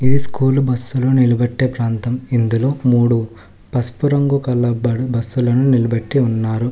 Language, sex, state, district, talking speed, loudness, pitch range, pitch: Telugu, male, Telangana, Hyderabad, 125 wpm, -16 LUFS, 115-130 Hz, 125 Hz